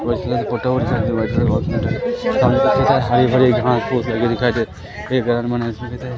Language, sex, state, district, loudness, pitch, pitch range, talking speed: Hindi, male, Madhya Pradesh, Katni, -18 LUFS, 120 Hz, 120-130 Hz, 105 wpm